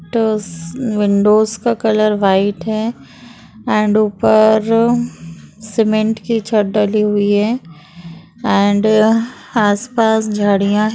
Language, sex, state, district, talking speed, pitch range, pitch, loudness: Hindi, female, Maharashtra, Chandrapur, 100 wpm, 205-225 Hz, 215 Hz, -15 LUFS